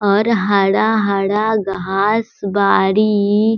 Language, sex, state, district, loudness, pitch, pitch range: Hindi, female, Bihar, Sitamarhi, -15 LUFS, 205 Hz, 200-215 Hz